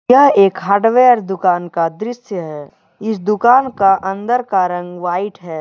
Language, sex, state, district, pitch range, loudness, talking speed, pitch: Hindi, male, Jharkhand, Deoghar, 175-230 Hz, -14 LUFS, 160 wpm, 195 Hz